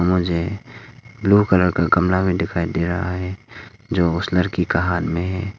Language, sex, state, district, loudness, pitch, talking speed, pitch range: Hindi, male, Arunachal Pradesh, Longding, -20 LUFS, 90 Hz, 180 wpm, 85-100 Hz